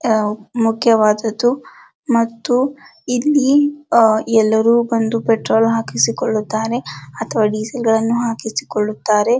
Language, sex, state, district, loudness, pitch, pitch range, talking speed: Kannada, male, Karnataka, Dharwad, -16 LUFS, 225 Hz, 220-245 Hz, 90 wpm